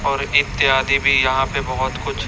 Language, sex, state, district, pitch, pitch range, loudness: Hindi, male, Chhattisgarh, Raipur, 135 Hz, 130-140 Hz, -17 LUFS